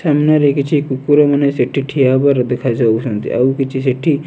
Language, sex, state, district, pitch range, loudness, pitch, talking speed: Odia, male, Odisha, Nuapada, 130-145 Hz, -14 LUFS, 135 Hz, 140 wpm